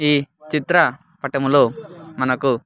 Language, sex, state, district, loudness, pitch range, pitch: Telugu, male, Andhra Pradesh, Sri Satya Sai, -19 LUFS, 135-160 Hz, 145 Hz